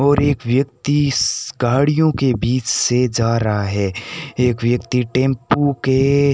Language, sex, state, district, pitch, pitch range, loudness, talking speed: Hindi, male, Rajasthan, Bikaner, 130 Hz, 120-140 Hz, -17 LUFS, 160 wpm